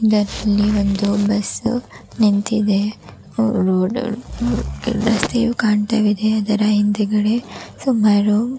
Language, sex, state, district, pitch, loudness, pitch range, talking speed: Kannada, female, Karnataka, Raichur, 210 Hz, -18 LUFS, 205-225 Hz, 85 wpm